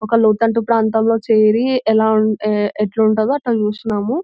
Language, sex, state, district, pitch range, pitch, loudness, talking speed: Telugu, female, Telangana, Nalgonda, 215-230 Hz, 220 Hz, -16 LUFS, 115 wpm